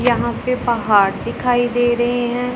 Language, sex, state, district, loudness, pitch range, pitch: Hindi, female, Punjab, Pathankot, -17 LUFS, 235-245 Hz, 245 Hz